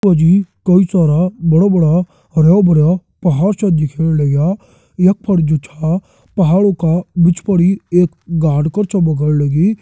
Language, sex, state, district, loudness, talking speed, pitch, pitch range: Hindi, male, Uttarakhand, Tehri Garhwal, -13 LUFS, 115 wpm, 175 Hz, 160-190 Hz